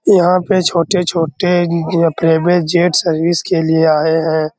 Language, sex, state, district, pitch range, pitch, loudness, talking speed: Hindi, male, Bihar, Araria, 160-180 Hz, 170 Hz, -13 LUFS, 145 wpm